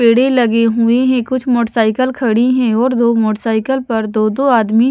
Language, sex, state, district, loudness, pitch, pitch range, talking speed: Hindi, female, Odisha, Malkangiri, -14 LUFS, 235 Hz, 225-255 Hz, 185 wpm